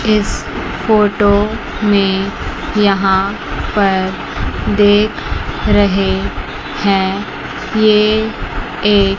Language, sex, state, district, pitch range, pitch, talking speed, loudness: Hindi, female, Chandigarh, Chandigarh, 195-210 Hz, 205 Hz, 65 wpm, -15 LUFS